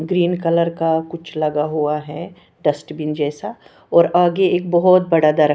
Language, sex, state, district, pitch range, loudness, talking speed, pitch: Hindi, female, Bihar, Patna, 155-175 Hz, -18 LUFS, 160 wpm, 165 Hz